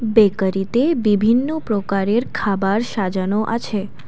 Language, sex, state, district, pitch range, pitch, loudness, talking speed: Bengali, female, Assam, Kamrup Metropolitan, 195-230 Hz, 210 Hz, -19 LUFS, 90 wpm